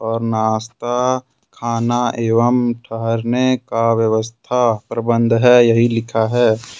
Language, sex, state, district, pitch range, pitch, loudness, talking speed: Hindi, male, Jharkhand, Ranchi, 115-120 Hz, 115 Hz, -16 LUFS, 95 wpm